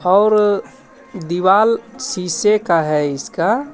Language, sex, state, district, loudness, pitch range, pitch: Hindi, male, Jharkhand, Ranchi, -16 LUFS, 175-225 Hz, 205 Hz